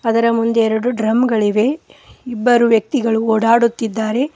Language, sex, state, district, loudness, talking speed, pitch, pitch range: Kannada, female, Karnataka, Koppal, -15 LUFS, 110 wpm, 230 Hz, 220-245 Hz